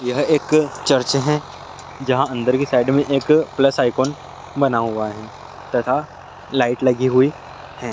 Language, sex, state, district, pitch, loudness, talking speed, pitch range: Hindi, male, Bihar, Lakhisarai, 135 Hz, -18 LUFS, 145 wpm, 125-140 Hz